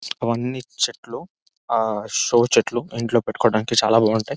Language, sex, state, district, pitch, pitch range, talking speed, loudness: Telugu, male, Telangana, Nalgonda, 115 Hz, 110-120 Hz, 125 wpm, -20 LUFS